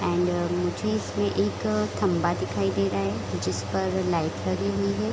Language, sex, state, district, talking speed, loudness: Hindi, female, Chhattisgarh, Raigarh, 175 wpm, -26 LUFS